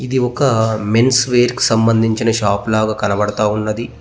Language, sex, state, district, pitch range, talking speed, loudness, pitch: Telugu, male, Telangana, Mahabubabad, 110-120 Hz, 150 wpm, -15 LUFS, 115 Hz